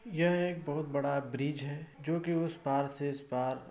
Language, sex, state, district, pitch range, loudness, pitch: Hindi, male, Uttar Pradesh, Ghazipur, 140-165 Hz, -34 LUFS, 145 Hz